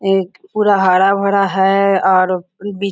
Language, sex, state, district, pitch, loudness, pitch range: Hindi, female, Jharkhand, Sahebganj, 195 Hz, -14 LUFS, 190-200 Hz